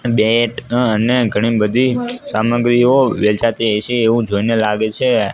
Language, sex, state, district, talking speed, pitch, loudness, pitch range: Gujarati, male, Gujarat, Gandhinagar, 125 wpm, 115 Hz, -15 LUFS, 110-125 Hz